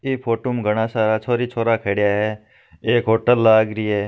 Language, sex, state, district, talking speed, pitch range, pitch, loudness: Marwari, male, Rajasthan, Nagaur, 190 wpm, 105-120 Hz, 110 Hz, -19 LUFS